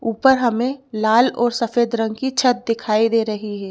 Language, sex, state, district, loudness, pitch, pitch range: Hindi, female, Madhya Pradesh, Bhopal, -19 LUFS, 235 Hz, 220-250 Hz